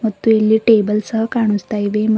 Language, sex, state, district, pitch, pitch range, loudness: Kannada, female, Karnataka, Bidar, 220 Hz, 210-225 Hz, -16 LUFS